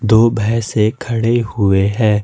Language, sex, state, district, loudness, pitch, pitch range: Hindi, male, Jharkhand, Ranchi, -15 LUFS, 110 Hz, 105-115 Hz